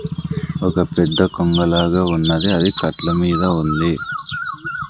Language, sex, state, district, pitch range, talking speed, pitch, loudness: Telugu, male, Andhra Pradesh, Sri Satya Sai, 85-100 Hz, 100 wpm, 85 Hz, -16 LUFS